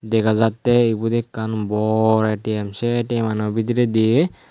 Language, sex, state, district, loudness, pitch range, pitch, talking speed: Chakma, male, Tripura, Unakoti, -19 LUFS, 110-120 Hz, 110 Hz, 135 wpm